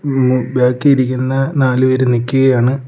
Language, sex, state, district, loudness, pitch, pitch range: Malayalam, male, Kerala, Kollam, -14 LUFS, 130 Hz, 125-135 Hz